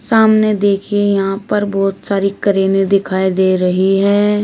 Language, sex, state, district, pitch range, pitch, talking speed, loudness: Hindi, female, Uttar Pradesh, Shamli, 195-205 Hz, 200 Hz, 150 wpm, -14 LUFS